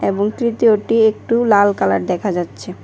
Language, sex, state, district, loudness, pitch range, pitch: Bengali, male, Tripura, West Tripura, -16 LUFS, 195-230 Hz, 210 Hz